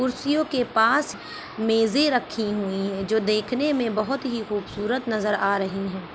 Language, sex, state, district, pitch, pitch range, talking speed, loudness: Hindi, female, Bihar, Saharsa, 220 Hz, 205-255 Hz, 165 wpm, -24 LUFS